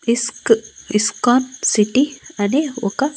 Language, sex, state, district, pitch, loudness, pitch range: Telugu, female, Andhra Pradesh, Annamaya, 245 Hz, -18 LUFS, 220-275 Hz